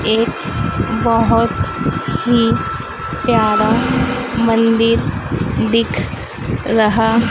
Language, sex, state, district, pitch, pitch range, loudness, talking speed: Hindi, female, Madhya Pradesh, Dhar, 230 Hz, 225-230 Hz, -16 LUFS, 55 wpm